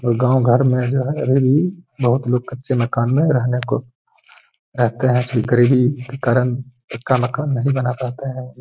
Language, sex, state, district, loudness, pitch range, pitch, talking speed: Hindi, male, Bihar, Gaya, -18 LUFS, 125-135 Hz, 125 Hz, 165 wpm